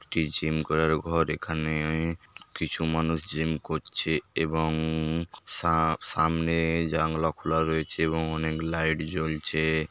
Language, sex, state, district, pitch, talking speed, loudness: Bengali, male, West Bengal, Paschim Medinipur, 80 Hz, 110 wpm, -27 LUFS